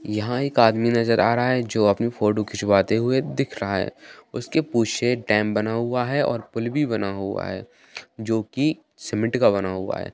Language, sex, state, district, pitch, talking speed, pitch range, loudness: Hindi, male, Bihar, Bhagalpur, 115 Hz, 195 wpm, 105-125 Hz, -22 LUFS